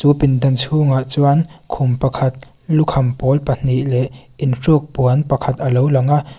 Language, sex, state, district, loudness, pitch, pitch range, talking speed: Mizo, female, Mizoram, Aizawl, -16 LUFS, 135 Hz, 130-145 Hz, 160 wpm